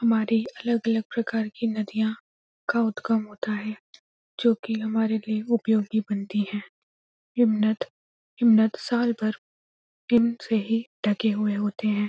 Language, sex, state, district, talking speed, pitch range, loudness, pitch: Hindi, female, Uttarakhand, Uttarkashi, 135 wpm, 215-230 Hz, -25 LUFS, 220 Hz